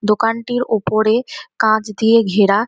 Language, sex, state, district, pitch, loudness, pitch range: Bengali, female, West Bengal, North 24 Parganas, 220 Hz, -16 LUFS, 215-230 Hz